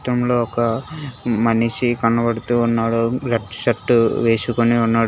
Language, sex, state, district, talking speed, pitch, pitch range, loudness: Telugu, male, Telangana, Hyderabad, 105 wpm, 115 Hz, 115-120 Hz, -19 LUFS